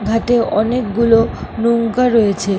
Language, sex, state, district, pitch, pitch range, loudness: Bengali, female, West Bengal, Kolkata, 230 Hz, 215-235 Hz, -15 LUFS